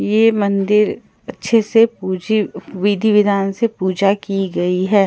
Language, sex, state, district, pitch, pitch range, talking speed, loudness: Hindi, female, Bihar, Katihar, 205 Hz, 195-220 Hz, 130 wpm, -16 LUFS